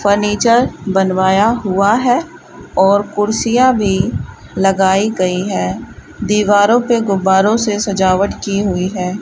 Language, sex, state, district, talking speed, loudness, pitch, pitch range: Hindi, female, Rajasthan, Bikaner, 115 wpm, -14 LUFS, 200 Hz, 190-215 Hz